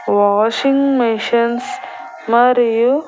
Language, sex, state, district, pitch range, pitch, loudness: Telugu, female, Andhra Pradesh, Annamaya, 230-275 Hz, 240 Hz, -14 LUFS